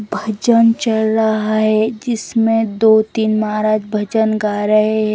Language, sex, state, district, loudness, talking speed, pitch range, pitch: Hindi, female, Chandigarh, Chandigarh, -15 LUFS, 140 wpm, 215-225 Hz, 215 Hz